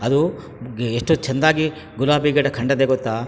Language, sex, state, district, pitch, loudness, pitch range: Kannada, male, Karnataka, Chamarajanagar, 135 Hz, -19 LUFS, 120-150 Hz